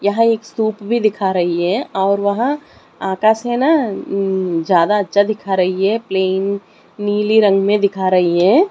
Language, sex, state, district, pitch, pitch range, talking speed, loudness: Hindi, male, Delhi, New Delhi, 200 Hz, 190-220 Hz, 165 wpm, -16 LUFS